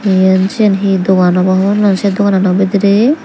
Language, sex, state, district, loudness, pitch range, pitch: Chakma, female, Tripura, Dhalai, -11 LUFS, 190-205 Hz, 195 Hz